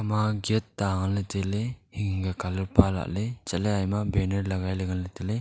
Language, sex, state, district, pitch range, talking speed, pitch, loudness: Wancho, male, Arunachal Pradesh, Longding, 95-105 Hz, 255 wpm, 100 Hz, -28 LUFS